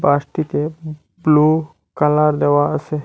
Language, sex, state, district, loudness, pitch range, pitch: Bengali, male, Assam, Hailakandi, -17 LUFS, 150-155 Hz, 150 Hz